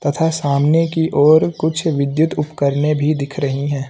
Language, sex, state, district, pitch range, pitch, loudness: Hindi, male, Uttar Pradesh, Lucknow, 140-160 Hz, 150 Hz, -16 LUFS